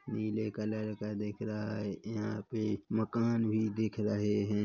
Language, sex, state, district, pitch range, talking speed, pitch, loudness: Hindi, male, Chhattisgarh, Korba, 105-110 Hz, 170 wpm, 105 Hz, -35 LUFS